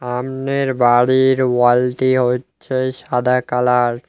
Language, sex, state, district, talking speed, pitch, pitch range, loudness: Bengali, male, West Bengal, Alipurduar, 105 wpm, 125 Hz, 125-130 Hz, -16 LUFS